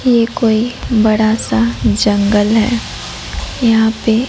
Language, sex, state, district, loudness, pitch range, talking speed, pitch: Hindi, female, Odisha, Nuapada, -14 LUFS, 210-230 Hz, 110 wpm, 220 Hz